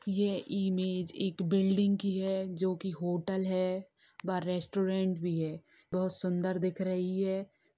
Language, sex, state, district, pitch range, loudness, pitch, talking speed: Hindi, female, Bihar, Sitamarhi, 180-195 Hz, -33 LUFS, 185 Hz, 145 wpm